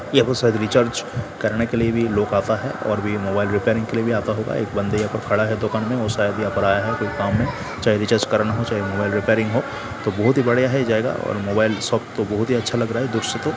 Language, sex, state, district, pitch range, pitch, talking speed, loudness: Hindi, male, Bihar, Sitamarhi, 105-115 Hz, 110 Hz, 275 wpm, -21 LUFS